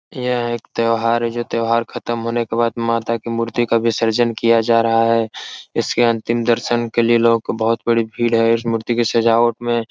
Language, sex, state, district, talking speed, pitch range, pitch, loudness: Hindi, male, Bihar, Jahanabad, 220 wpm, 115-120 Hz, 115 Hz, -18 LUFS